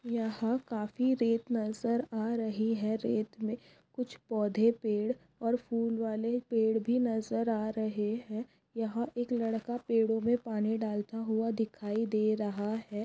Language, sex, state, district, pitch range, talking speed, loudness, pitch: Hindi, female, Maharashtra, Aurangabad, 220-235 Hz, 145 wpm, -33 LUFS, 225 Hz